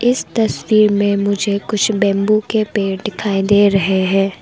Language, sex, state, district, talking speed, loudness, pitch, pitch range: Hindi, female, Arunachal Pradesh, Longding, 165 wpm, -15 LUFS, 205 Hz, 195-215 Hz